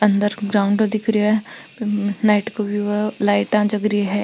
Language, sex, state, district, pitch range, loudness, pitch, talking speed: Marwari, female, Rajasthan, Nagaur, 205-215 Hz, -19 LUFS, 210 Hz, 185 wpm